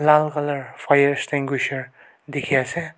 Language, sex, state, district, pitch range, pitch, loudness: Nagamese, male, Nagaland, Kohima, 135-150 Hz, 145 Hz, -21 LUFS